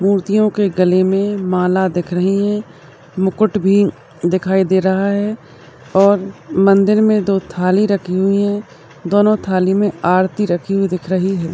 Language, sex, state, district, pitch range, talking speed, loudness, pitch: Hindi, female, Uttar Pradesh, Ghazipur, 180-200 Hz, 160 wpm, -15 LUFS, 190 Hz